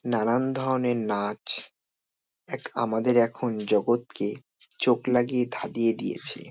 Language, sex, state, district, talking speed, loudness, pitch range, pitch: Bengali, male, West Bengal, North 24 Parganas, 110 wpm, -26 LUFS, 115-125 Hz, 120 Hz